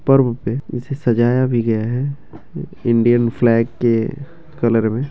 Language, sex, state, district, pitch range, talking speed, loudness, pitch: Maithili, male, Bihar, Begusarai, 115-135 Hz, 140 wpm, -17 LUFS, 120 Hz